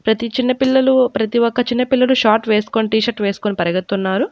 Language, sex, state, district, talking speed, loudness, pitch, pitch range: Telugu, female, Andhra Pradesh, Annamaya, 155 wpm, -16 LUFS, 230 Hz, 210-250 Hz